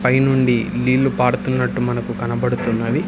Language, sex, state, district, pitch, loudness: Telugu, male, Telangana, Hyderabad, 90 Hz, -18 LUFS